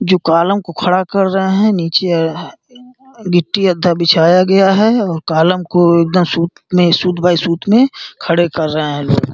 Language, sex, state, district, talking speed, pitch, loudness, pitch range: Hindi, male, Uttar Pradesh, Gorakhpur, 165 wpm, 180 Hz, -13 LUFS, 170-195 Hz